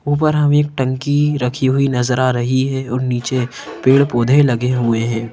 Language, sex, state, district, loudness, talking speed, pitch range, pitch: Hindi, female, Madhya Pradesh, Bhopal, -16 LUFS, 180 wpm, 125-145 Hz, 130 Hz